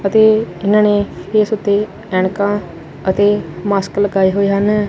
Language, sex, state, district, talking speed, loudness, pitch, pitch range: Punjabi, male, Punjab, Kapurthala, 135 wpm, -15 LUFS, 205 Hz, 195-210 Hz